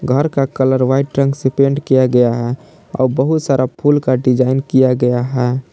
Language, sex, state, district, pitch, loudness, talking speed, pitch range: Hindi, male, Jharkhand, Palamu, 130 Hz, -15 LUFS, 200 wpm, 125-140 Hz